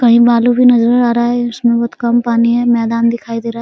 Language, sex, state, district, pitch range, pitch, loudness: Hindi, female, Bihar, Araria, 235-240 Hz, 235 Hz, -12 LUFS